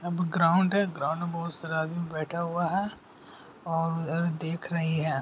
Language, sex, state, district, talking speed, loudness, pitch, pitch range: Hindi, male, Bihar, Bhagalpur, 160 wpm, -28 LUFS, 170 Hz, 160-175 Hz